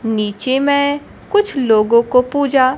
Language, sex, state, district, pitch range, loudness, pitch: Hindi, male, Bihar, Kaimur, 235-285 Hz, -15 LUFS, 260 Hz